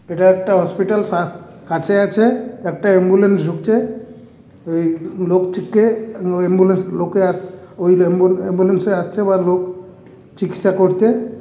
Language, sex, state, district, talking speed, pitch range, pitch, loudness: Bengali, male, West Bengal, Purulia, 120 wpm, 180-205 Hz, 185 Hz, -16 LUFS